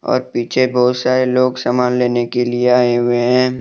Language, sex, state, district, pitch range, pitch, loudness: Hindi, male, Jharkhand, Deoghar, 120-125 Hz, 125 Hz, -15 LUFS